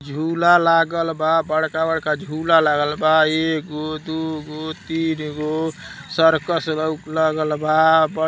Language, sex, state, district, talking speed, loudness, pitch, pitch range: Hindi, male, Uttar Pradesh, Deoria, 100 wpm, -19 LUFS, 160 Hz, 155-160 Hz